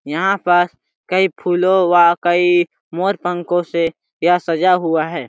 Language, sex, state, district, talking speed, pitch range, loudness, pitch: Hindi, male, Chhattisgarh, Sarguja, 150 wpm, 165-180 Hz, -16 LUFS, 175 Hz